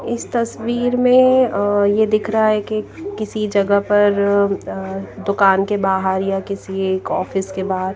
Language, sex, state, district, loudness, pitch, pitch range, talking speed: Hindi, female, Himachal Pradesh, Shimla, -17 LUFS, 200 Hz, 195-220 Hz, 150 wpm